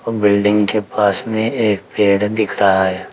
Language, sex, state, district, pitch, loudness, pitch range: Hindi, male, Uttar Pradesh, Saharanpur, 105 Hz, -16 LUFS, 100-110 Hz